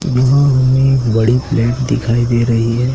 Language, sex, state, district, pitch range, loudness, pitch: Hindi, male, Madhya Pradesh, Dhar, 115-130 Hz, -13 LUFS, 125 Hz